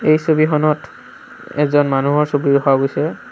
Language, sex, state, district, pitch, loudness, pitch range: Assamese, male, Assam, Sonitpur, 145 Hz, -16 LUFS, 140-155 Hz